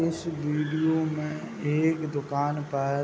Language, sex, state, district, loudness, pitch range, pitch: Hindi, male, Bihar, Saharsa, -28 LUFS, 145-160 Hz, 150 Hz